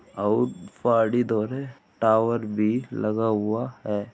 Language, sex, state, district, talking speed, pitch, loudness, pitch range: Hindi, male, Uttar Pradesh, Muzaffarnagar, 130 wpm, 110 Hz, -25 LUFS, 105-120 Hz